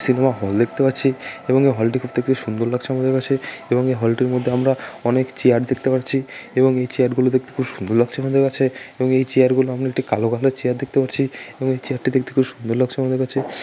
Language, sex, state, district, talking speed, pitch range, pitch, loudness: Bengali, male, West Bengal, Malda, 240 wpm, 125-130 Hz, 130 Hz, -20 LUFS